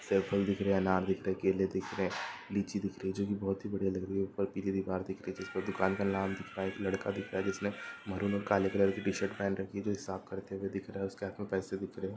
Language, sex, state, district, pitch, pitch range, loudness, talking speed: Hindi, female, Bihar, East Champaran, 95 Hz, 95-100 Hz, -35 LUFS, 330 wpm